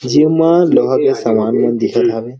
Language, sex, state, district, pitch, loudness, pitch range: Chhattisgarhi, male, Chhattisgarh, Rajnandgaon, 150 Hz, -13 LUFS, 120-165 Hz